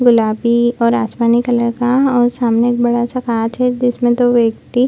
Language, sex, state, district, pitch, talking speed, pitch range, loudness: Hindi, female, Bihar, Lakhisarai, 240 Hz, 185 wpm, 235-245 Hz, -14 LUFS